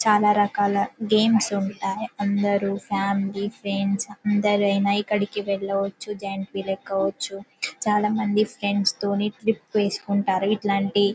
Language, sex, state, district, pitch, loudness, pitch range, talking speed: Telugu, female, Telangana, Karimnagar, 200 Hz, -24 LUFS, 195-210 Hz, 120 wpm